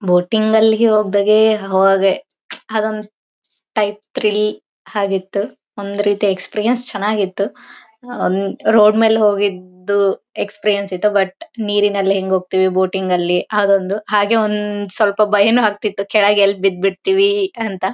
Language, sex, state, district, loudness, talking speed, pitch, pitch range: Kannada, female, Karnataka, Bellary, -16 LUFS, 115 wpm, 205 Hz, 195-215 Hz